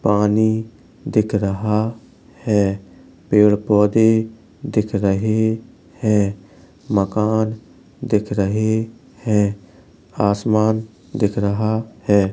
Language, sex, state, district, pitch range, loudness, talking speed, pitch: Hindi, male, Uttar Pradesh, Hamirpur, 100-110 Hz, -19 LUFS, 80 wpm, 105 Hz